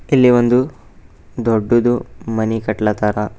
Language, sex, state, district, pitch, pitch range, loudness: Kannada, male, Karnataka, Bidar, 110 Hz, 105-120 Hz, -16 LUFS